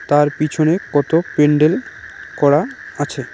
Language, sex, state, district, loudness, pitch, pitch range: Bengali, male, West Bengal, Cooch Behar, -16 LUFS, 150 Hz, 145-160 Hz